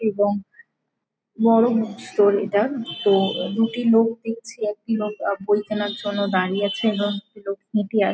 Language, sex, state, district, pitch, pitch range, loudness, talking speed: Bengali, female, West Bengal, Jhargram, 210 Hz, 200-225 Hz, -22 LUFS, 160 wpm